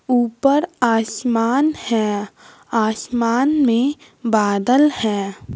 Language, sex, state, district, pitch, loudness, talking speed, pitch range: Hindi, male, Bihar, West Champaran, 235 Hz, -18 LUFS, 75 wpm, 215-265 Hz